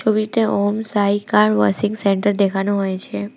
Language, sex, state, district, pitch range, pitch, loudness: Bengali, female, West Bengal, Alipurduar, 190-210 Hz, 200 Hz, -18 LUFS